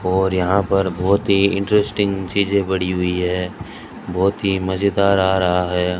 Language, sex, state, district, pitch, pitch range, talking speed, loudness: Hindi, male, Rajasthan, Bikaner, 95 Hz, 90-100 Hz, 160 wpm, -18 LUFS